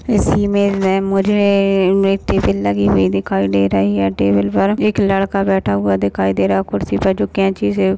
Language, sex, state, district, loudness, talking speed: Hindi, male, Maharashtra, Nagpur, -15 LUFS, 205 wpm